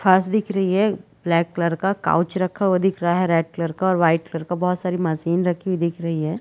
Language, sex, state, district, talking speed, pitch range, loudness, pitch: Hindi, female, Chhattisgarh, Bilaspur, 255 wpm, 165-190 Hz, -21 LUFS, 180 Hz